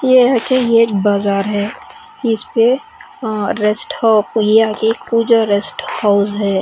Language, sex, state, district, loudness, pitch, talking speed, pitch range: Hindi, female, Bihar, Patna, -15 LUFS, 225 Hz, 120 wpm, 205-245 Hz